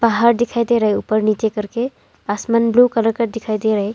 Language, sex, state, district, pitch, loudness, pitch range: Hindi, female, Arunachal Pradesh, Longding, 225 Hz, -17 LUFS, 215-235 Hz